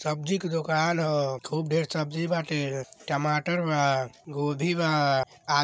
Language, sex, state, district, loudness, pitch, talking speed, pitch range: Bhojpuri, male, Uttar Pradesh, Deoria, -27 LUFS, 155 Hz, 150 wpm, 145-165 Hz